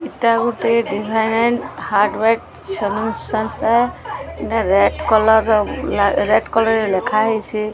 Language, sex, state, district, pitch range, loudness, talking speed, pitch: Odia, female, Odisha, Sambalpur, 215-230 Hz, -17 LUFS, 95 wpm, 220 Hz